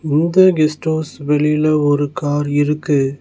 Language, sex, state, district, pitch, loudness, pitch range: Tamil, male, Tamil Nadu, Nilgiris, 150 Hz, -16 LUFS, 145-155 Hz